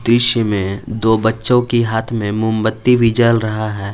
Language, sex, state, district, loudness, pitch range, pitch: Hindi, male, Jharkhand, Palamu, -15 LUFS, 110-120 Hz, 110 Hz